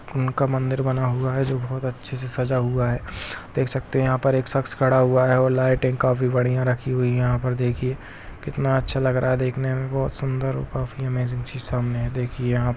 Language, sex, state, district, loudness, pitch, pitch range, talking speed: Hindi, male, Chhattisgarh, Rajnandgaon, -23 LUFS, 130 Hz, 125-130 Hz, 235 wpm